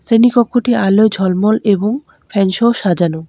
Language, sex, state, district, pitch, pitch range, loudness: Bengali, female, West Bengal, Alipurduar, 215 Hz, 195-235 Hz, -13 LUFS